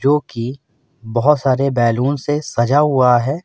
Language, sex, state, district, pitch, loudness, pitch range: Hindi, male, Uttar Pradesh, Lucknow, 135 Hz, -16 LUFS, 120-145 Hz